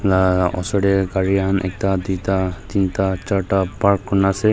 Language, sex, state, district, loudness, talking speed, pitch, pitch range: Nagamese, male, Nagaland, Dimapur, -19 LUFS, 170 wpm, 95 Hz, 95-100 Hz